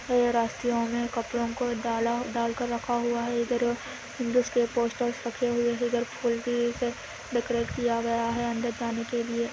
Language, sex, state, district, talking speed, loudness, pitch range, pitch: Hindi, female, Andhra Pradesh, Anantapur, 165 wpm, -28 LUFS, 235-240 Hz, 240 Hz